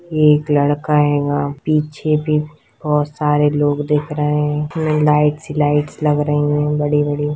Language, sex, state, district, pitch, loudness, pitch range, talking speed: Hindi, female, Chhattisgarh, Kabirdham, 150 Hz, -17 LUFS, 145-150 Hz, 165 wpm